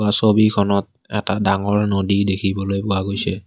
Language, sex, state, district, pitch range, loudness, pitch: Assamese, male, Assam, Kamrup Metropolitan, 100-105 Hz, -19 LUFS, 100 Hz